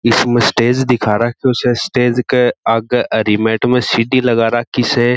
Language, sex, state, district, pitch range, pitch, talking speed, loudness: Marwari, male, Rajasthan, Churu, 115-125 Hz, 120 Hz, 175 wpm, -14 LUFS